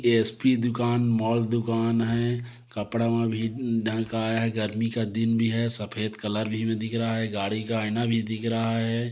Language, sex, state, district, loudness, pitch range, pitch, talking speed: Hindi, male, Chhattisgarh, Korba, -26 LUFS, 110-115 Hz, 115 Hz, 195 wpm